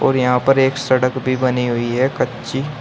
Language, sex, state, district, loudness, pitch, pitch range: Hindi, male, Uttar Pradesh, Shamli, -17 LUFS, 130 Hz, 125-135 Hz